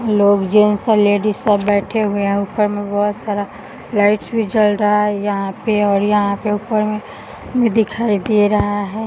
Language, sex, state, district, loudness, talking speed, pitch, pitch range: Hindi, female, Uttar Pradesh, Gorakhpur, -16 LUFS, 190 wpm, 210 Hz, 205-215 Hz